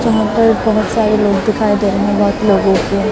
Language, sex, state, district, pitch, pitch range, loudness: Hindi, female, Chandigarh, Chandigarh, 210 Hz, 200-220 Hz, -13 LUFS